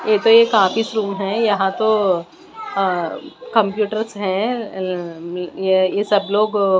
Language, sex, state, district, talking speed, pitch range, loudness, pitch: Hindi, female, Punjab, Pathankot, 150 wpm, 190-220 Hz, -18 LUFS, 205 Hz